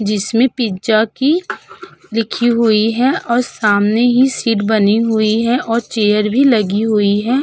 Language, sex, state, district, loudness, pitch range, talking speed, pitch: Hindi, female, Uttar Pradesh, Budaun, -14 LUFS, 215-245 Hz, 160 wpm, 225 Hz